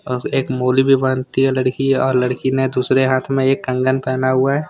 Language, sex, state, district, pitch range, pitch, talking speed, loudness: Hindi, male, Jharkhand, Deoghar, 130-135 Hz, 130 Hz, 230 wpm, -17 LUFS